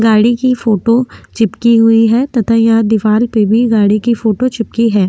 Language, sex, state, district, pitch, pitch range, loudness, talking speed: Hindi, female, Maharashtra, Aurangabad, 225 Hz, 220-235 Hz, -11 LUFS, 190 wpm